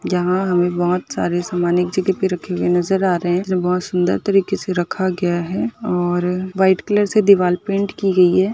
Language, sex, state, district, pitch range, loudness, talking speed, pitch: Hindi, female, Uttar Pradesh, Budaun, 180-190 Hz, -18 LUFS, 210 wpm, 180 Hz